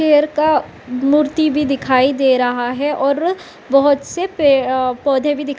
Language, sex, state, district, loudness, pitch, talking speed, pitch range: Hindi, female, Uttar Pradesh, Etah, -16 LUFS, 285 Hz, 185 wpm, 265-300 Hz